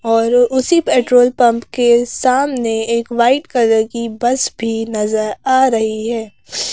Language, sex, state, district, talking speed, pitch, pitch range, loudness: Hindi, female, Madhya Pradesh, Bhopal, 145 wpm, 235 Hz, 225-250 Hz, -15 LUFS